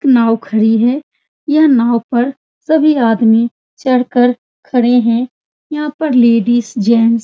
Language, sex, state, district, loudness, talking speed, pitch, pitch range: Hindi, female, Bihar, Supaul, -13 LUFS, 165 wpm, 245 Hz, 230-270 Hz